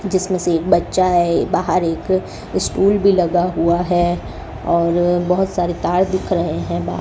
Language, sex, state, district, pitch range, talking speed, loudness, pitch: Hindi, male, Rajasthan, Bikaner, 170-185 Hz, 180 wpm, -17 LUFS, 175 Hz